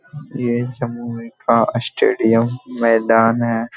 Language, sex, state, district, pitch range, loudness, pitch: Hindi, male, Bihar, Jamui, 115-125 Hz, -17 LUFS, 120 Hz